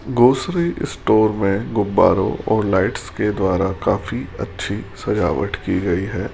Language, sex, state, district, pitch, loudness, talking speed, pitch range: Hindi, male, Rajasthan, Jaipur, 105 Hz, -19 LUFS, 130 wpm, 95-120 Hz